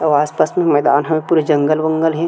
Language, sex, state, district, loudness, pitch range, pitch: Chhattisgarhi, male, Chhattisgarh, Sukma, -15 LUFS, 145-160 Hz, 155 Hz